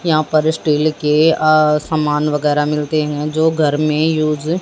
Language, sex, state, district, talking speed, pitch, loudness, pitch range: Hindi, female, Haryana, Jhajjar, 180 wpm, 155 Hz, -15 LUFS, 150-155 Hz